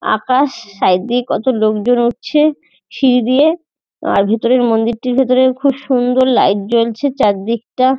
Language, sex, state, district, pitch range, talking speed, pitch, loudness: Bengali, female, West Bengal, North 24 Parganas, 230-265 Hz, 120 wpm, 250 Hz, -14 LUFS